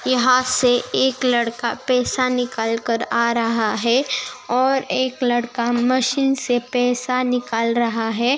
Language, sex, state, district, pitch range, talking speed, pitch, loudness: Hindi, female, Bihar, Bhagalpur, 235-255 Hz, 135 wpm, 245 Hz, -19 LUFS